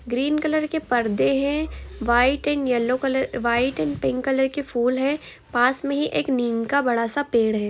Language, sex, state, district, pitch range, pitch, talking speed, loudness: Hindi, female, Jharkhand, Jamtara, 240-280 Hz, 255 Hz, 185 wpm, -22 LUFS